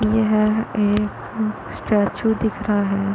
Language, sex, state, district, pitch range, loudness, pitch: Hindi, female, Chhattisgarh, Korba, 205-220 Hz, -20 LUFS, 215 Hz